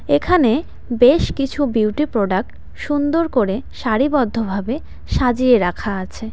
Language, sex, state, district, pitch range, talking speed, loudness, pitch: Bengali, female, West Bengal, Cooch Behar, 215-280 Hz, 115 wpm, -18 LUFS, 245 Hz